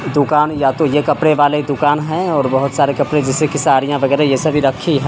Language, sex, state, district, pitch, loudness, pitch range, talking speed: Hindi, male, Bihar, Samastipur, 145 Hz, -14 LUFS, 140-150 Hz, 250 wpm